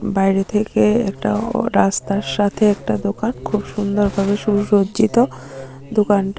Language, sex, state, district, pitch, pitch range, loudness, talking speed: Bengali, female, Tripura, Unakoti, 205 Hz, 195-215 Hz, -18 LUFS, 115 wpm